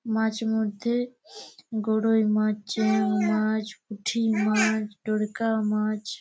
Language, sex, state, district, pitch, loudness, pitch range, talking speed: Bengali, female, West Bengal, Malda, 215 Hz, -26 LUFS, 215-220 Hz, 85 wpm